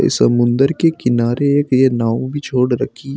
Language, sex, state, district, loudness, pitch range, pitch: Hindi, male, Uttar Pradesh, Shamli, -15 LUFS, 120-140 Hz, 130 Hz